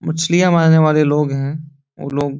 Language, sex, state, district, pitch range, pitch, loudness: Hindi, male, Bihar, Supaul, 145-160 Hz, 150 Hz, -15 LUFS